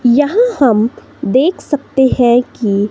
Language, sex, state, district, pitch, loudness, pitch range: Hindi, female, Himachal Pradesh, Shimla, 260 Hz, -13 LUFS, 240-290 Hz